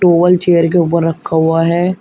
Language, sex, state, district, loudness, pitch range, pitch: Hindi, male, Uttar Pradesh, Shamli, -12 LUFS, 165-175 Hz, 170 Hz